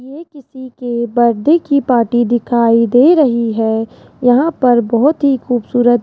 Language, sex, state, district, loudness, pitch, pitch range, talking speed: Hindi, female, Rajasthan, Jaipur, -13 LUFS, 245 Hz, 235-275 Hz, 160 wpm